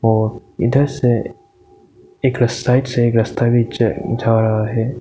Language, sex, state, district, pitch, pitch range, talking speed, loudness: Hindi, male, Arunachal Pradesh, Lower Dibang Valley, 120 Hz, 115-130 Hz, 170 wpm, -17 LUFS